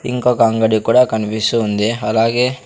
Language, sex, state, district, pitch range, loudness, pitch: Telugu, male, Andhra Pradesh, Sri Satya Sai, 110-125 Hz, -15 LUFS, 115 Hz